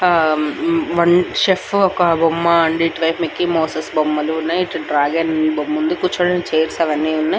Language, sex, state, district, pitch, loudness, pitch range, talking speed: Telugu, male, Andhra Pradesh, Anantapur, 165 Hz, -17 LUFS, 155-175 Hz, 145 wpm